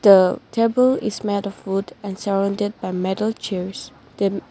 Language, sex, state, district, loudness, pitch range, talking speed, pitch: English, female, Nagaland, Dimapur, -21 LUFS, 195-215 Hz, 160 wpm, 200 Hz